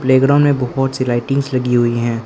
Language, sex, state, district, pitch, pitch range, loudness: Hindi, male, Arunachal Pradesh, Lower Dibang Valley, 130 Hz, 120-135 Hz, -15 LUFS